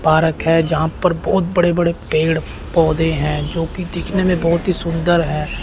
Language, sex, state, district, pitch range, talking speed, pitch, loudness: Hindi, male, Chandigarh, Chandigarh, 160-175 Hz, 160 wpm, 165 Hz, -17 LUFS